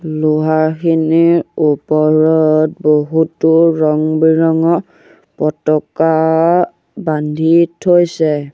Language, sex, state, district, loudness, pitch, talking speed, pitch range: Assamese, male, Assam, Sonitpur, -13 LUFS, 160 Hz, 55 wpm, 155-165 Hz